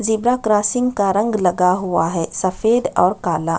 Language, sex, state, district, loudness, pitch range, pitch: Hindi, female, Chhattisgarh, Sukma, -18 LUFS, 180-220 Hz, 200 Hz